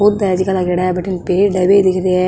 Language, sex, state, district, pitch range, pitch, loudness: Marwari, female, Rajasthan, Nagaur, 185-195 Hz, 185 Hz, -14 LUFS